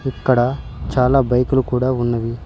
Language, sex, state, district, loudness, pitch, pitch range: Telugu, male, Telangana, Mahabubabad, -18 LUFS, 125 Hz, 120-130 Hz